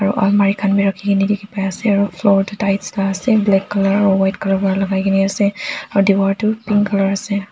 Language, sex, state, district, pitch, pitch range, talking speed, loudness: Nagamese, female, Nagaland, Dimapur, 195 Hz, 195-205 Hz, 215 wpm, -16 LUFS